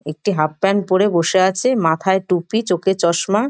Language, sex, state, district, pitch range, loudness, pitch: Bengali, male, West Bengal, Dakshin Dinajpur, 170-200 Hz, -17 LUFS, 190 Hz